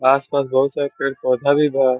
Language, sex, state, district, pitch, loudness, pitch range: Bhojpuri, male, Bihar, Saran, 135 Hz, -19 LUFS, 130-140 Hz